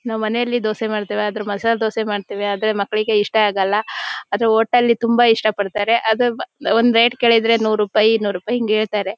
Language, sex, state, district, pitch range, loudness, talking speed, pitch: Kannada, female, Karnataka, Shimoga, 210-230 Hz, -18 LUFS, 170 wpm, 220 Hz